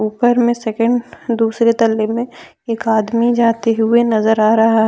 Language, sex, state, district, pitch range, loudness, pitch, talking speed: Hindi, female, Jharkhand, Deoghar, 220-235 Hz, -15 LUFS, 230 Hz, 160 wpm